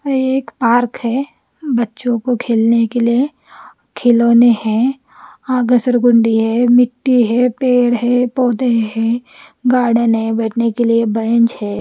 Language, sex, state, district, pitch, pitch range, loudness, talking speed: Hindi, female, Chandigarh, Chandigarh, 240 Hz, 230-250 Hz, -14 LUFS, 135 wpm